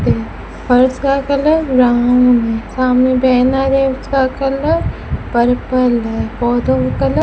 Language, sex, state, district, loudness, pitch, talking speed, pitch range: Hindi, female, Rajasthan, Bikaner, -14 LUFS, 250 Hz, 140 wpm, 230-270 Hz